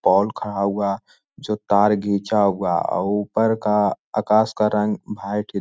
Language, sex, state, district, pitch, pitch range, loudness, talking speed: Hindi, male, Jharkhand, Jamtara, 105 Hz, 100-105 Hz, -21 LUFS, 160 wpm